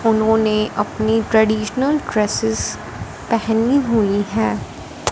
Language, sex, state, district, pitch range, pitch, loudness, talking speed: Hindi, female, Punjab, Fazilka, 200-225 Hz, 220 Hz, -18 LUFS, 80 wpm